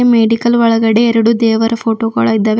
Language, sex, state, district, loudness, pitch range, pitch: Kannada, female, Karnataka, Bidar, -12 LUFS, 225-230 Hz, 225 Hz